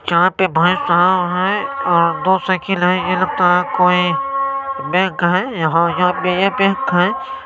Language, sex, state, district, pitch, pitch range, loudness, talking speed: Maithili, male, Bihar, Supaul, 180 Hz, 180-195 Hz, -16 LUFS, 170 wpm